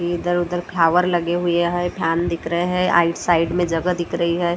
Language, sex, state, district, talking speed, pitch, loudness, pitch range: Hindi, female, Maharashtra, Gondia, 210 wpm, 175 Hz, -20 LUFS, 170-175 Hz